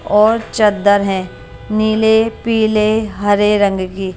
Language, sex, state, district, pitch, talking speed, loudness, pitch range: Hindi, female, Himachal Pradesh, Shimla, 210 Hz, 130 wpm, -14 LUFS, 200-220 Hz